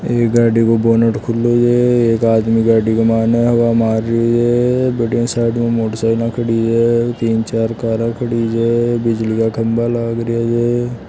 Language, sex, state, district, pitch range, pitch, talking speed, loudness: Marwari, male, Rajasthan, Churu, 115-120 Hz, 115 Hz, 175 wpm, -15 LUFS